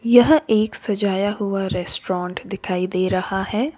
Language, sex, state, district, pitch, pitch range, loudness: Hindi, female, Uttar Pradesh, Lalitpur, 195 Hz, 185-215 Hz, -20 LUFS